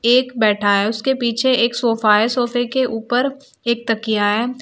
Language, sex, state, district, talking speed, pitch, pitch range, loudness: Hindi, female, Uttar Pradesh, Shamli, 180 wpm, 235 Hz, 220-250 Hz, -18 LUFS